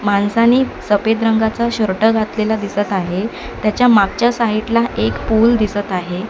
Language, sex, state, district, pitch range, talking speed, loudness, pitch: Marathi, female, Maharashtra, Mumbai Suburban, 205-230 Hz, 145 wpm, -16 LUFS, 220 Hz